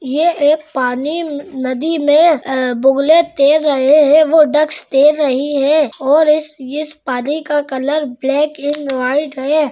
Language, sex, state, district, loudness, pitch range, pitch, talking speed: Hindi, female, Bihar, Muzaffarpur, -14 LUFS, 270-305 Hz, 295 Hz, 150 wpm